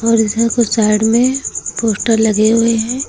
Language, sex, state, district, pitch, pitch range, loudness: Hindi, female, Uttar Pradesh, Lucknow, 225 Hz, 220-230 Hz, -14 LUFS